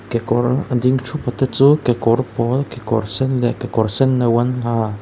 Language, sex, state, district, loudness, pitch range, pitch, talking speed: Mizo, male, Mizoram, Aizawl, -18 LUFS, 115-130 Hz, 120 Hz, 215 wpm